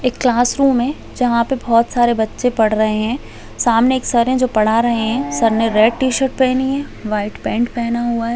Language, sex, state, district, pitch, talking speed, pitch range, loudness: Hindi, female, Chhattisgarh, Balrampur, 235 Hz, 215 wpm, 225-255 Hz, -16 LUFS